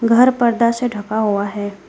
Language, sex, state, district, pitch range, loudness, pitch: Hindi, female, West Bengal, Alipurduar, 205-235 Hz, -17 LUFS, 225 Hz